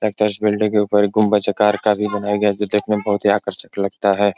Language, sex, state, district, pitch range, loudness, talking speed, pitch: Hindi, male, Uttar Pradesh, Etah, 100-105 Hz, -18 LUFS, 300 wpm, 105 Hz